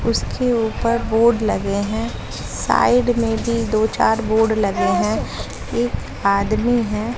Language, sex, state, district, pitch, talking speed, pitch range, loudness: Hindi, female, Bihar, West Champaran, 220 Hz, 135 wpm, 200-230 Hz, -19 LUFS